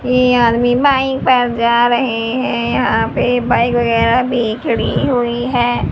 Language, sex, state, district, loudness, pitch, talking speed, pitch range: Hindi, female, Haryana, Rohtak, -14 LUFS, 240 Hz, 150 wpm, 235-250 Hz